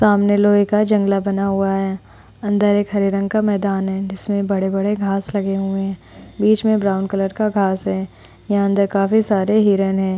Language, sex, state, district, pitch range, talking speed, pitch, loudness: Hindi, female, Uttar Pradesh, Hamirpur, 195-205 Hz, 200 wpm, 200 Hz, -18 LUFS